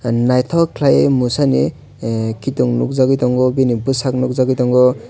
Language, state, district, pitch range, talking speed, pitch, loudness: Kokborok, Tripura, West Tripura, 120-135 Hz, 130 wpm, 125 Hz, -15 LUFS